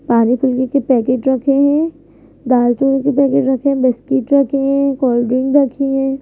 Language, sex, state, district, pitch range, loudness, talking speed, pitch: Hindi, female, Madhya Pradesh, Bhopal, 255-275 Hz, -14 LUFS, 185 wpm, 270 Hz